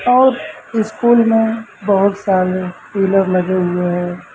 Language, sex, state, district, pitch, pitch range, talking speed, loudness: Hindi, male, Uttar Pradesh, Lucknow, 195 Hz, 185-225 Hz, 125 wpm, -15 LUFS